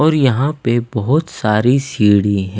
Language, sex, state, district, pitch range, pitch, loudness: Hindi, male, Himachal Pradesh, Shimla, 105-145 Hz, 125 Hz, -15 LUFS